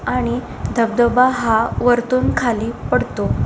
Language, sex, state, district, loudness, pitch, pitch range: Marathi, female, Maharashtra, Solapur, -17 LUFS, 240 Hz, 235-250 Hz